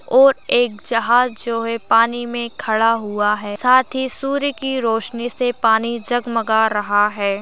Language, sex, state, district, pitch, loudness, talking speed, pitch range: Hindi, female, Uttar Pradesh, Gorakhpur, 235 Hz, -17 LUFS, 155 wpm, 220-250 Hz